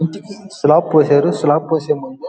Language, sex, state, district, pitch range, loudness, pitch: Telugu, male, Andhra Pradesh, Guntur, 150-200 Hz, -15 LUFS, 160 Hz